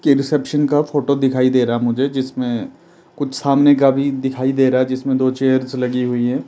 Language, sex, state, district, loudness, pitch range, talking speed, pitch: Hindi, male, Himachal Pradesh, Shimla, -17 LUFS, 130-140 Hz, 215 wpm, 135 Hz